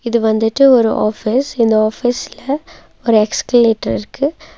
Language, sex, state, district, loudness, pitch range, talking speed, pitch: Tamil, female, Tamil Nadu, Nilgiris, -15 LUFS, 220-265 Hz, 120 wpm, 235 Hz